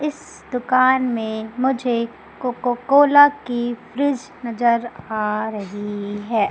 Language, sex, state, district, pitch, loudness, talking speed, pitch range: Hindi, female, Madhya Pradesh, Umaria, 240 Hz, -20 LUFS, 90 wpm, 220-260 Hz